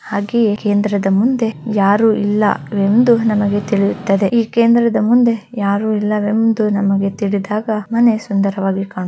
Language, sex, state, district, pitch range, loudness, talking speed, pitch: Kannada, female, Karnataka, Bellary, 200-225 Hz, -15 LUFS, 145 wpm, 210 Hz